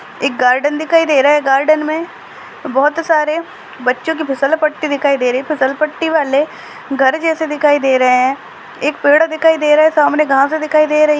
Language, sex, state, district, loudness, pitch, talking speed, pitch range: Hindi, female, Maharashtra, Dhule, -14 LUFS, 300 Hz, 200 wpm, 275-315 Hz